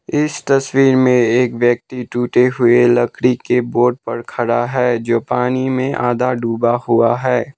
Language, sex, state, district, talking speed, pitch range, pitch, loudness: Hindi, male, Sikkim, Gangtok, 160 wpm, 120-125 Hz, 120 Hz, -15 LUFS